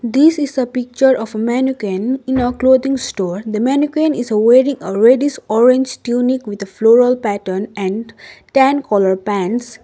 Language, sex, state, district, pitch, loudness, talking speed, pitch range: English, female, Sikkim, Gangtok, 245 Hz, -15 LUFS, 165 wpm, 215-260 Hz